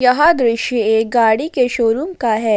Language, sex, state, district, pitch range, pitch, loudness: Hindi, female, Jharkhand, Ranchi, 225-255 Hz, 235 Hz, -15 LUFS